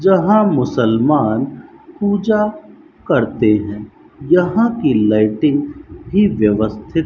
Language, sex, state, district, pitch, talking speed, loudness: Hindi, male, Rajasthan, Bikaner, 150 Hz, 95 wpm, -15 LUFS